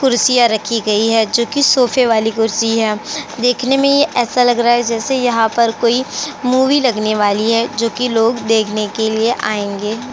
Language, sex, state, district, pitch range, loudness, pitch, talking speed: Hindi, female, Uttar Pradesh, Jyotiba Phule Nagar, 220-250 Hz, -14 LUFS, 235 Hz, 170 wpm